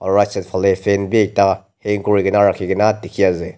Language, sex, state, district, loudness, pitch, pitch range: Nagamese, male, Nagaland, Dimapur, -17 LUFS, 100 Hz, 95-105 Hz